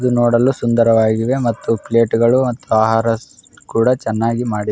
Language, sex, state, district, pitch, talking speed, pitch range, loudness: Kannada, male, Karnataka, Raichur, 115 Hz, 150 wpm, 115-120 Hz, -16 LUFS